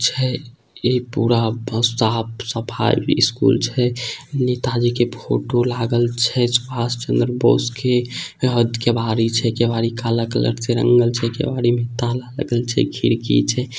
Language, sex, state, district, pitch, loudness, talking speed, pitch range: Maithili, male, Bihar, Samastipur, 120 Hz, -19 LUFS, 145 wpm, 115-125 Hz